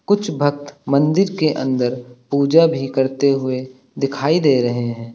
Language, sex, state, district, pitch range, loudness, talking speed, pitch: Hindi, male, Uttar Pradesh, Lucknow, 130-150 Hz, -18 LUFS, 150 wpm, 135 Hz